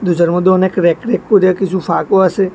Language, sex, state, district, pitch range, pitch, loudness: Bengali, male, Tripura, West Tripura, 175-195 Hz, 185 Hz, -13 LUFS